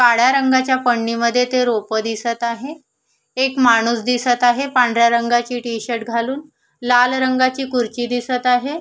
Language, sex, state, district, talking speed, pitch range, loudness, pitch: Marathi, female, Maharashtra, Solapur, 135 wpm, 235-255 Hz, -17 LUFS, 245 Hz